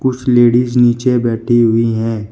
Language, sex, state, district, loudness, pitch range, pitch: Hindi, male, Uttar Pradesh, Shamli, -13 LUFS, 115-125 Hz, 120 Hz